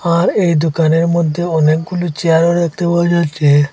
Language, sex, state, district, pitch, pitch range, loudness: Bengali, male, Assam, Hailakandi, 170 Hz, 160-170 Hz, -14 LUFS